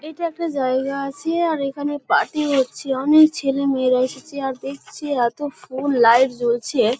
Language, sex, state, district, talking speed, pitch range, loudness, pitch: Bengali, male, West Bengal, Kolkata, 155 wpm, 255-290 Hz, -20 LUFS, 275 Hz